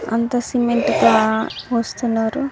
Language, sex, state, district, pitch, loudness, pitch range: Telugu, female, Telangana, Karimnagar, 235 Hz, -18 LUFS, 225-245 Hz